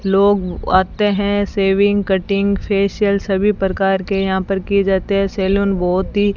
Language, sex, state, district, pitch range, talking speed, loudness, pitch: Hindi, female, Rajasthan, Bikaner, 190-200 Hz, 170 wpm, -16 LUFS, 195 Hz